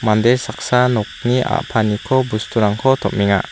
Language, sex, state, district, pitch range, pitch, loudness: Garo, female, Meghalaya, South Garo Hills, 105-125 Hz, 110 Hz, -17 LUFS